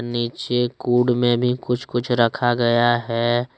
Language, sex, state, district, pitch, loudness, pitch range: Hindi, male, Jharkhand, Deoghar, 120 Hz, -20 LUFS, 120-125 Hz